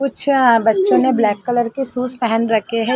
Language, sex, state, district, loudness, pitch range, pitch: Hindi, female, Uttar Pradesh, Jalaun, -16 LUFS, 230-265 Hz, 245 Hz